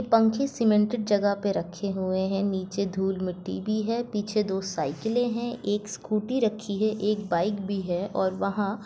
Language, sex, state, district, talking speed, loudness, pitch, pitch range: Hindi, female, Jharkhand, Jamtara, 175 wpm, -27 LUFS, 205 Hz, 190-215 Hz